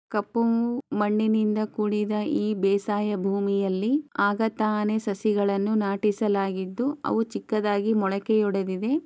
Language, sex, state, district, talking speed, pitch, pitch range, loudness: Kannada, female, Karnataka, Chamarajanagar, 65 wpm, 210 Hz, 200-220 Hz, -25 LUFS